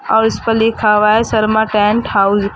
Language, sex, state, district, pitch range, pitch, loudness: Hindi, female, Uttar Pradesh, Saharanpur, 210-225 Hz, 215 Hz, -13 LUFS